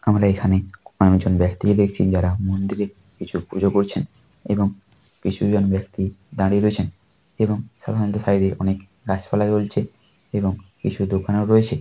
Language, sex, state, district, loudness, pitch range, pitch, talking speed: Bengali, male, West Bengal, Paschim Medinipur, -21 LUFS, 95-105 Hz, 100 Hz, 145 wpm